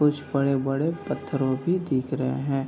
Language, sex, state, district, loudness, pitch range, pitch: Hindi, male, Bihar, Vaishali, -26 LUFS, 135-150 Hz, 140 Hz